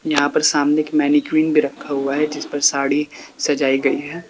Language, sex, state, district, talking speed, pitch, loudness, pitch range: Hindi, male, Uttar Pradesh, Lalitpur, 180 wpm, 145 Hz, -18 LUFS, 140-150 Hz